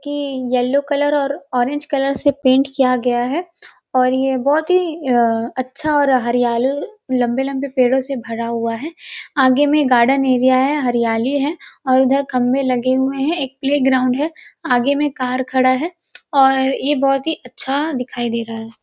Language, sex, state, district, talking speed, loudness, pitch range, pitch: Hindi, female, Chhattisgarh, Rajnandgaon, 180 wpm, -17 LUFS, 250-285 Hz, 265 Hz